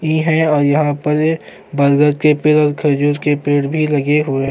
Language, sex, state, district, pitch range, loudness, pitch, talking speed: Hindi, male, Chhattisgarh, Kabirdham, 145-150 Hz, -15 LUFS, 150 Hz, 200 wpm